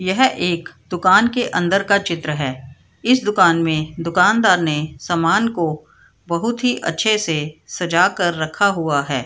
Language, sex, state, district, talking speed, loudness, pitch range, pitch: Hindi, female, Bihar, Madhepura, 155 wpm, -18 LUFS, 155-200 Hz, 175 Hz